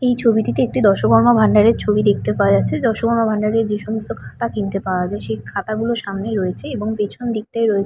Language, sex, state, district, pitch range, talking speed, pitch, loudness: Bengali, female, West Bengal, Paschim Medinipur, 200-230 Hz, 205 wpm, 215 Hz, -18 LUFS